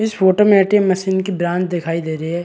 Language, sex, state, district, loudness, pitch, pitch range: Hindi, male, Chhattisgarh, Bilaspur, -16 LUFS, 190 Hz, 175-195 Hz